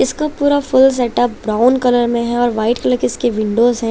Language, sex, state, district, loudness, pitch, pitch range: Hindi, female, Chandigarh, Chandigarh, -15 LUFS, 240 Hz, 225-260 Hz